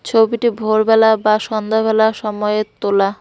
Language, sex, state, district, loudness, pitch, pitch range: Bengali, female, West Bengal, Cooch Behar, -15 LUFS, 220 Hz, 215-220 Hz